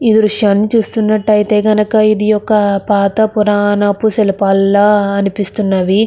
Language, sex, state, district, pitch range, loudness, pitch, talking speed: Telugu, female, Andhra Pradesh, Krishna, 200-215 Hz, -12 LUFS, 210 Hz, 100 wpm